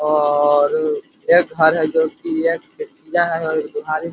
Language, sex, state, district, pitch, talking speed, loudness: Hindi, male, Chhattisgarh, Korba, 165 Hz, 175 wpm, -18 LUFS